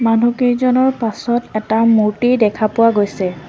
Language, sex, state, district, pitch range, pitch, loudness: Assamese, female, Assam, Sonitpur, 215-240 Hz, 230 Hz, -15 LUFS